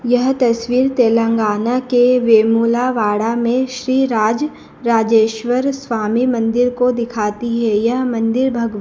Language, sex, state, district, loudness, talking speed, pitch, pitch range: Hindi, female, Madhya Pradesh, Dhar, -16 LUFS, 115 wpm, 235 Hz, 225-250 Hz